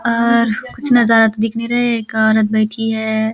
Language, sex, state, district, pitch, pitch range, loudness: Hindi, female, Chhattisgarh, Balrampur, 225 Hz, 220-235 Hz, -15 LUFS